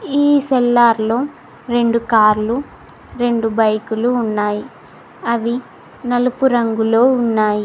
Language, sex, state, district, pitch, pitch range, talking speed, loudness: Telugu, female, Telangana, Mahabubabad, 235 Hz, 220-245 Hz, 85 wpm, -16 LUFS